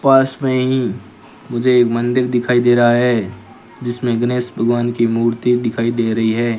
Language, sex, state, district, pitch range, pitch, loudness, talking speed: Hindi, male, Rajasthan, Bikaner, 115-125 Hz, 120 Hz, -16 LUFS, 175 wpm